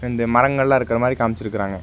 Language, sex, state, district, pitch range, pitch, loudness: Tamil, male, Tamil Nadu, Nilgiris, 110-125 Hz, 120 Hz, -19 LUFS